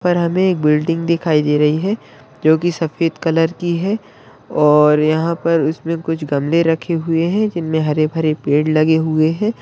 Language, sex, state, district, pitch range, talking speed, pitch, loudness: Hindi, male, Uttarakhand, Uttarkashi, 155-170 Hz, 185 wpm, 160 Hz, -16 LUFS